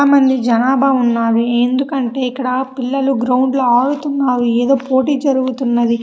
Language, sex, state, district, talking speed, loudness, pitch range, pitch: Telugu, female, Andhra Pradesh, Srikakulam, 130 wpm, -15 LUFS, 245-270 Hz, 260 Hz